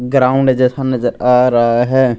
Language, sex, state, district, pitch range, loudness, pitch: Hindi, male, Punjab, Fazilka, 125-130 Hz, -13 LUFS, 125 Hz